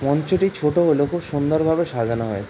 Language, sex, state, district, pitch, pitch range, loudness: Bengali, male, West Bengal, Jhargram, 150 Hz, 135-165 Hz, -20 LUFS